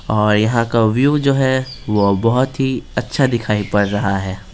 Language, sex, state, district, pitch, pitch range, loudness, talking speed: Hindi, male, Bihar, Patna, 115 Hz, 105-130 Hz, -16 LUFS, 185 wpm